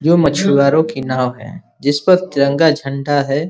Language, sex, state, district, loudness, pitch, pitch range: Hindi, male, Uttar Pradesh, Ghazipur, -15 LUFS, 140 Hz, 135-160 Hz